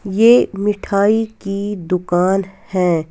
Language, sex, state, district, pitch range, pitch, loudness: Hindi, female, Bihar, West Champaran, 185-210 Hz, 195 Hz, -16 LUFS